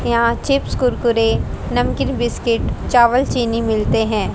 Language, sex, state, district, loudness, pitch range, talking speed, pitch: Hindi, female, Haryana, Rohtak, -17 LUFS, 225-245 Hz, 140 wpm, 235 Hz